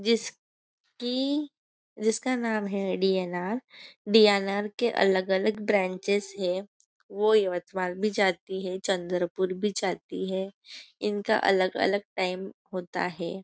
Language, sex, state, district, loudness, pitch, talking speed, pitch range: Hindi, female, Maharashtra, Nagpur, -27 LUFS, 200 Hz, 120 wpm, 185-215 Hz